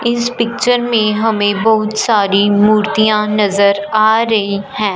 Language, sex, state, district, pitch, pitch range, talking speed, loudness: Hindi, female, Punjab, Fazilka, 215 Hz, 205-225 Hz, 135 wpm, -13 LUFS